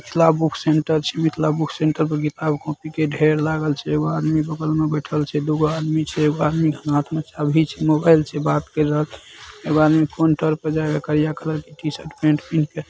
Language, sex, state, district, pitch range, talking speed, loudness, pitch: Maithili, male, Bihar, Saharsa, 150-155 Hz, 225 wpm, -20 LUFS, 155 Hz